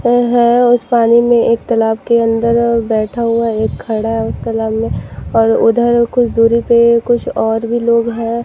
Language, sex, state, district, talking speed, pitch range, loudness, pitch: Hindi, female, Bihar, West Champaran, 190 wpm, 225-235 Hz, -13 LUFS, 235 Hz